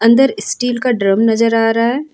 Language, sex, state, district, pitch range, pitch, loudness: Hindi, female, Jharkhand, Ranchi, 225-250 Hz, 230 Hz, -14 LUFS